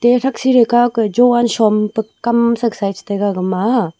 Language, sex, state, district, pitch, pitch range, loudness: Wancho, female, Arunachal Pradesh, Longding, 230 Hz, 205-240 Hz, -15 LUFS